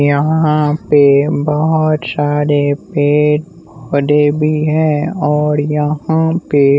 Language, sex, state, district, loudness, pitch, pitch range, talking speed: Hindi, male, Bihar, West Champaran, -13 LUFS, 150 Hz, 145-155 Hz, 95 wpm